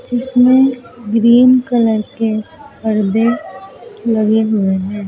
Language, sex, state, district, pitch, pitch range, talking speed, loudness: Hindi, female, Uttar Pradesh, Lucknow, 225 Hz, 215-245 Hz, 95 wpm, -14 LUFS